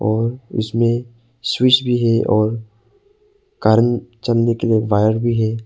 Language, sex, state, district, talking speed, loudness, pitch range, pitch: Hindi, male, Arunachal Pradesh, Papum Pare, 140 wpm, -17 LUFS, 110-120 Hz, 115 Hz